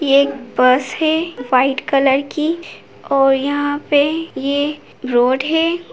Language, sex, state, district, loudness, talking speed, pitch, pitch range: Hindi, female, Bihar, Begusarai, -16 LUFS, 140 wpm, 280 Hz, 270-305 Hz